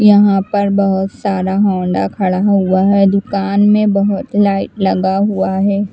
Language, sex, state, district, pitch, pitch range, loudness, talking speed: Hindi, female, Chandigarh, Chandigarh, 200 Hz, 190-205 Hz, -14 LUFS, 150 wpm